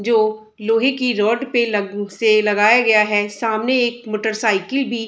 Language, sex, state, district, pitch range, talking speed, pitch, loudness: Hindi, female, Uttar Pradesh, Budaun, 210-240 Hz, 175 wpm, 220 Hz, -17 LUFS